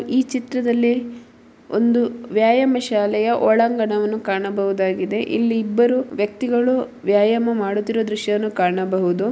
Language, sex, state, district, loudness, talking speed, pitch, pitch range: Kannada, female, Karnataka, Mysore, -19 LUFS, 90 wpm, 225 Hz, 205-240 Hz